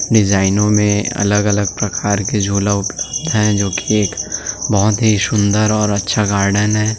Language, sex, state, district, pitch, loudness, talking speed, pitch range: Hindi, male, Chhattisgarh, Sukma, 105 Hz, -15 LUFS, 155 wpm, 100-105 Hz